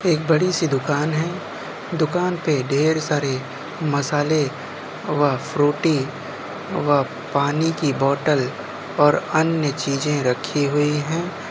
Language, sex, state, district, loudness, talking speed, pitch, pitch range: Hindi, male, Uttar Pradesh, Budaun, -21 LUFS, 110 wpm, 150 Hz, 140-160 Hz